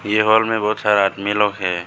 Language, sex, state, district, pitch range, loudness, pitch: Hindi, male, Arunachal Pradesh, Lower Dibang Valley, 100-110 Hz, -17 LUFS, 105 Hz